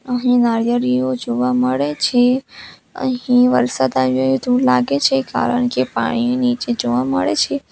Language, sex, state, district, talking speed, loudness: Gujarati, female, Gujarat, Valsad, 150 wpm, -17 LUFS